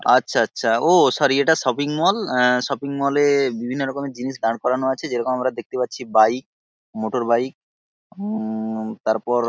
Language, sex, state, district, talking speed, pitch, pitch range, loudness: Bengali, male, West Bengal, Paschim Medinipur, 150 wpm, 125 Hz, 120-140 Hz, -20 LUFS